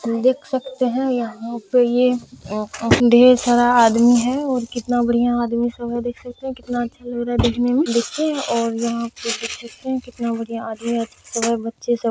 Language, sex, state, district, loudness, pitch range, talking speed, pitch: Maithili, female, Bihar, Purnia, -19 LUFS, 230-245 Hz, 230 wpm, 240 Hz